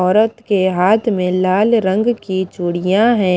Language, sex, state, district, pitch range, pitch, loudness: Hindi, female, Maharashtra, Mumbai Suburban, 185-220 Hz, 190 Hz, -15 LUFS